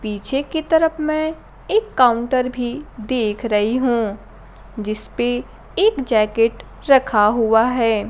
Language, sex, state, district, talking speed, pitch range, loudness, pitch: Hindi, female, Bihar, Kaimur, 125 wpm, 220-270 Hz, -19 LUFS, 245 Hz